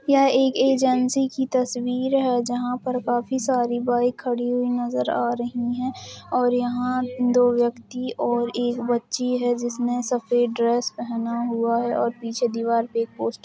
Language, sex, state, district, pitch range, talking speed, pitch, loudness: Hindi, female, Uttar Pradesh, Jalaun, 240-250 Hz, 170 wpm, 245 Hz, -23 LUFS